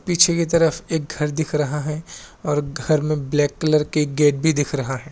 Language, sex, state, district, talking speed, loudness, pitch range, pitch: Hindi, male, Assam, Kamrup Metropolitan, 225 wpm, -20 LUFS, 145-160 Hz, 150 Hz